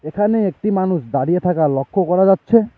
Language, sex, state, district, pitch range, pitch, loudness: Bengali, male, West Bengal, Alipurduar, 165-205 Hz, 185 Hz, -17 LUFS